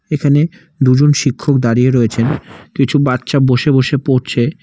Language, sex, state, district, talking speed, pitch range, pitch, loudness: Bengali, male, West Bengal, Alipurduar, 130 wpm, 125-145 Hz, 140 Hz, -13 LUFS